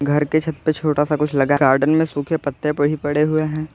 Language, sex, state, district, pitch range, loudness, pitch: Hindi, male, Uttar Pradesh, Lalitpur, 145-155 Hz, -19 LUFS, 150 Hz